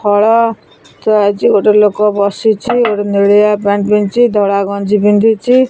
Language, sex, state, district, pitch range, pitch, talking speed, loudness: Odia, female, Odisha, Khordha, 200-220 Hz, 210 Hz, 125 wpm, -11 LUFS